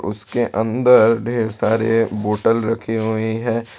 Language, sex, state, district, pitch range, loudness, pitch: Hindi, male, Jharkhand, Ranchi, 110-115 Hz, -18 LUFS, 115 Hz